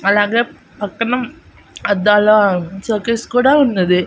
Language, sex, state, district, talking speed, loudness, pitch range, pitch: Telugu, female, Andhra Pradesh, Annamaya, 90 wpm, -15 LUFS, 200-235 Hz, 210 Hz